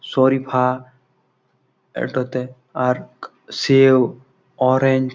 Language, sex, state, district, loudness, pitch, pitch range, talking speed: Bengali, male, West Bengal, Malda, -18 LUFS, 130 Hz, 125-130 Hz, 80 wpm